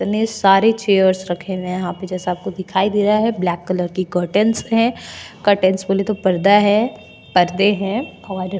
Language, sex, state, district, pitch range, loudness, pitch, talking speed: Hindi, female, Goa, North and South Goa, 185-210 Hz, -17 LUFS, 195 Hz, 200 wpm